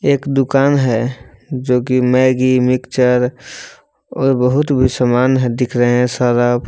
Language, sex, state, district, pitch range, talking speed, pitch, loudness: Hindi, male, Jharkhand, Palamu, 125-130 Hz, 135 wpm, 125 Hz, -14 LUFS